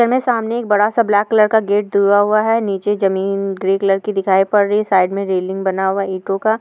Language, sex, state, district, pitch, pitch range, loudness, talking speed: Hindi, female, Uttar Pradesh, Deoria, 200 Hz, 195-215 Hz, -16 LUFS, 265 wpm